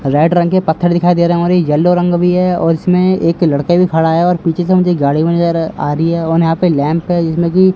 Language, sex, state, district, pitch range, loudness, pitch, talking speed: Hindi, male, Delhi, New Delhi, 165-180 Hz, -12 LUFS, 170 Hz, 300 wpm